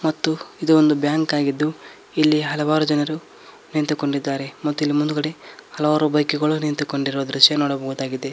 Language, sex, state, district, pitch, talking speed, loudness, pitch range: Kannada, male, Karnataka, Koppal, 150 Hz, 130 wpm, -20 LUFS, 145-155 Hz